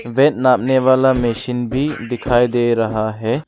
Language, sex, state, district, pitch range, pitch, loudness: Hindi, male, Arunachal Pradesh, Lower Dibang Valley, 120-130 Hz, 125 Hz, -16 LUFS